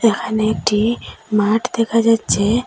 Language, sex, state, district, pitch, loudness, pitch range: Bengali, female, Assam, Hailakandi, 220 Hz, -17 LUFS, 215-230 Hz